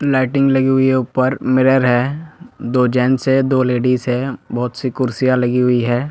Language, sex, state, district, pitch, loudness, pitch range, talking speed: Hindi, male, Jharkhand, Jamtara, 130 Hz, -16 LUFS, 125-130 Hz, 185 wpm